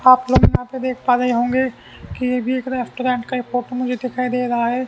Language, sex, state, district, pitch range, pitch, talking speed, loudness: Hindi, male, Haryana, Rohtak, 245-255 Hz, 250 Hz, 260 wpm, -19 LUFS